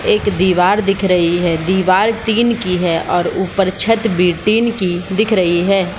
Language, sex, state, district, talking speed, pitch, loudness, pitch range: Hindi, female, Bihar, Supaul, 190 wpm, 190 Hz, -15 LUFS, 180-210 Hz